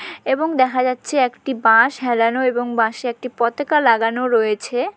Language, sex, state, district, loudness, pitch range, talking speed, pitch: Bengali, female, West Bengal, Malda, -18 LUFS, 230-255 Hz, 145 wpm, 245 Hz